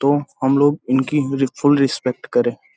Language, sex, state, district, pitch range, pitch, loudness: Hindi, male, Bihar, Gopalganj, 130-145 Hz, 135 Hz, -18 LUFS